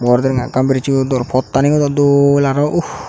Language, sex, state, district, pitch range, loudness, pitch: Chakma, male, Tripura, Unakoti, 130-145 Hz, -14 LUFS, 135 Hz